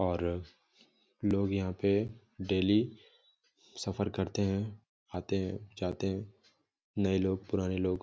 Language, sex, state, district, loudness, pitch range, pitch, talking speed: Hindi, male, Jharkhand, Jamtara, -34 LUFS, 95-100 Hz, 95 Hz, 120 wpm